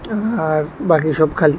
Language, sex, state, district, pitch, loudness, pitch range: Bengali, male, Tripura, West Tripura, 155 Hz, -17 LUFS, 155-170 Hz